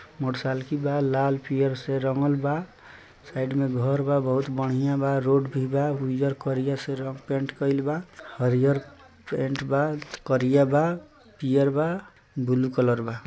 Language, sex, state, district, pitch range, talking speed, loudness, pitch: Bhojpuri, male, Bihar, East Champaran, 130-140 Hz, 150 wpm, -25 LUFS, 135 Hz